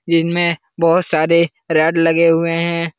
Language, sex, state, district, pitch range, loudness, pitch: Hindi, male, Bihar, Jahanabad, 165-170 Hz, -15 LUFS, 165 Hz